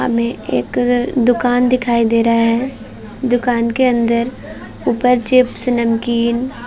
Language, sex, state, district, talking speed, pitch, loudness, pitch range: Hindi, female, Uttar Pradesh, Varanasi, 125 wpm, 245 Hz, -16 LUFS, 235-250 Hz